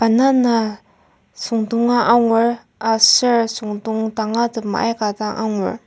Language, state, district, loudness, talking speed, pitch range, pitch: Ao, Nagaland, Kohima, -17 LUFS, 100 wpm, 220-235 Hz, 225 Hz